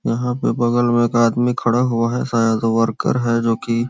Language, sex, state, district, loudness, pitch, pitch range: Hindi, male, Chhattisgarh, Korba, -18 LUFS, 120 Hz, 115-120 Hz